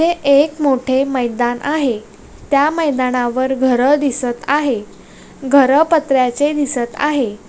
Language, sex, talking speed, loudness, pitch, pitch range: Marathi, female, 110 wpm, -15 LUFS, 265 Hz, 245-290 Hz